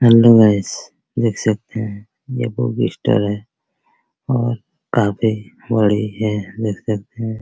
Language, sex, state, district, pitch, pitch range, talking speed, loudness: Hindi, male, Bihar, Araria, 110 Hz, 105-115 Hz, 145 wpm, -18 LUFS